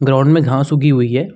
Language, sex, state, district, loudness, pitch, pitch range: Hindi, male, Uttar Pradesh, Muzaffarnagar, -13 LUFS, 135 Hz, 135-150 Hz